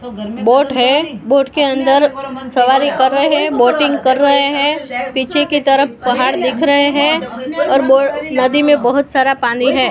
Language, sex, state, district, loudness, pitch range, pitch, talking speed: Hindi, female, Maharashtra, Mumbai Suburban, -13 LUFS, 255-290 Hz, 275 Hz, 170 wpm